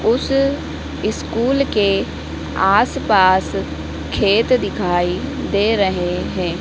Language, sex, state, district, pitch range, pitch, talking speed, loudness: Hindi, female, Madhya Pradesh, Dhar, 170-225 Hz, 190 Hz, 90 wpm, -18 LUFS